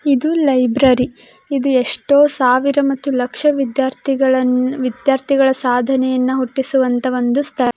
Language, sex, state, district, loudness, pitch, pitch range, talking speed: Kannada, female, Karnataka, Belgaum, -16 LUFS, 265 Hz, 255-275 Hz, 125 wpm